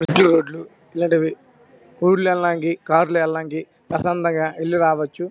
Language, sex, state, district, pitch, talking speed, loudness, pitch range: Telugu, male, Andhra Pradesh, Krishna, 165 Hz, 125 wpm, -19 LUFS, 160-175 Hz